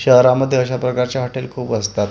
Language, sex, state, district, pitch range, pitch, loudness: Marathi, male, Maharashtra, Gondia, 125-130 Hz, 125 Hz, -17 LUFS